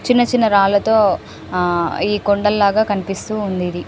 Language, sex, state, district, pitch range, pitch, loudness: Telugu, female, Telangana, Karimnagar, 190-215 Hz, 205 Hz, -16 LUFS